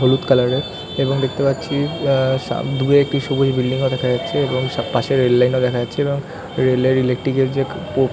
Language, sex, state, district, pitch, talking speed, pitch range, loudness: Bengali, male, West Bengal, Malda, 135 Hz, 230 wpm, 130-140 Hz, -18 LUFS